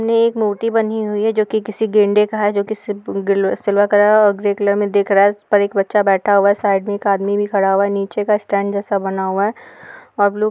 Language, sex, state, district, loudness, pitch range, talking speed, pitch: Hindi, female, Uttar Pradesh, Etah, -16 LUFS, 200-210 Hz, 270 wpm, 205 Hz